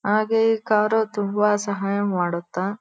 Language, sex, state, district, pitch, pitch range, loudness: Kannada, female, Karnataka, Dharwad, 205 Hz, 200-215 Hz, -22 LUFS